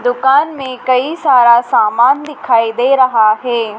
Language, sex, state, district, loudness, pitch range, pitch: Hindi, female, Madhya Pradesh, Dhar, -12 LUFS, 230-270 Hz, 250 Hz